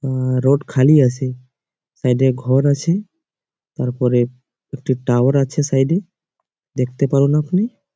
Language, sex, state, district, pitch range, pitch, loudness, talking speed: Bengali, male, West Bengal, Malda, 125-150 Hz, 135 Hz, -17 LUFS, 135 wpm